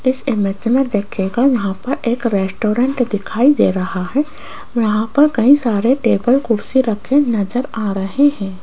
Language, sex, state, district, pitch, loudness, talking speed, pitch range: Hindi, female, Rajasthan, Jaipur, 235 Hz, -16 LUFS, 160 wpm, 205-265 Hz